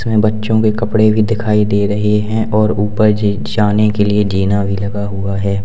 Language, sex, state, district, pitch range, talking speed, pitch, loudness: Hindi, male, Uttar Pradesh, Lalitpur, 100-110 Hz, 210 wpm, 105 Hz, -14 LUFS